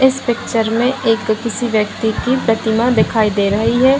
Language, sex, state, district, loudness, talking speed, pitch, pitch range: Hindi, female, Bihar, Kishanganj, -16 LUFS, 180 wpm, 225 Hz, 220-245 Hz